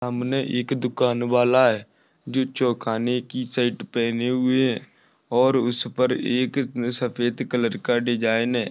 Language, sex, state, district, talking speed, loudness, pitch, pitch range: Hindi, male, Maharashtra, Sindhudurg, 140 wpm, -23 LUFS, 125 Hz, 120-130 Hz